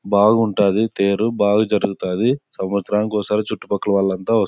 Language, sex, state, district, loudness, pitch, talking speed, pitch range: Telugu, male, Andhra Pradesh, Anantapur, -19 LUFS, 105 Hz, 145 wpm, 100-110 Hz